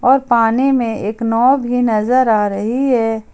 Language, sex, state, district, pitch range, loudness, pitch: Hindi, female, Jharkhand, Ranchi, 220-255 Hz, -15 LUFS, 230 Hz